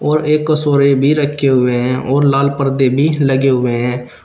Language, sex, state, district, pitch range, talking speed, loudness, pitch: Hindi, male, Uttar Pradesh, Shamli, 130-145 Hz, 200 wpm, -14 LUFS, 140 Hz